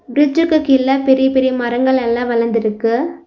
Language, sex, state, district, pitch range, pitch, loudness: Tamil, female, Tamil Nadu, Nilgiris, 240-280 Hz, 260 Hz, -15 LUFS